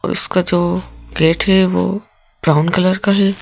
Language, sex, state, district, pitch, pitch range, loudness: Hindi, female, Madhya Pradesh, Bhopal, 185 Hz, 175-195 Hz, -15 LUFS